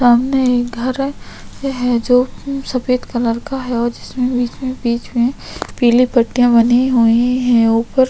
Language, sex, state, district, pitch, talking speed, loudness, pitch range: Hindi, female, Chhattisgarh, Sukma, 245 Hz, 155 wpm, -16 LUFS, 240-255 Hz